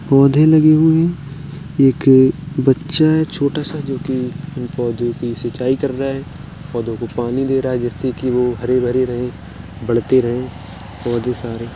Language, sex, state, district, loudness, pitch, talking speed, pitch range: Hindi, male, Uttar Pradesh, Jalaun, -17 LUFS, 130 Hz, 165 wpm, 120-145 Hz